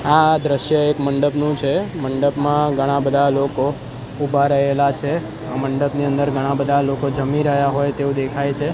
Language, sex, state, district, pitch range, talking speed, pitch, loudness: Gujarati, male, Gujarat, Gandhinagar, 140-145 Hz, 145 wpm, 140 Hz, -18 LUFS